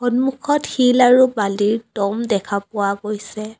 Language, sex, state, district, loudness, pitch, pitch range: Assamese, female, Assam, Kamrup Metropolitan, -18 LUFS, 215 Hz, 205-250 Hz